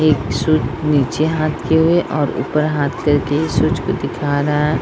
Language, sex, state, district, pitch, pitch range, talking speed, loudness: Hindi, female, Uttar Pradesh, Etah, 150 Hz, 145-155 Hz, 185 wpm, -17 LUFS